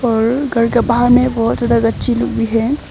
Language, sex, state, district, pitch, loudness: Hindi, female, Arunachal Pradesh, Longding, 230 Hz, -14 LUFS